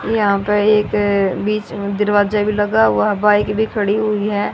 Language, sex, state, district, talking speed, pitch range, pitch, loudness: Hindi, female, Haryana, Rohtak, 200 wpm, 205-210 Hz, 210 Hz, -16 LUFS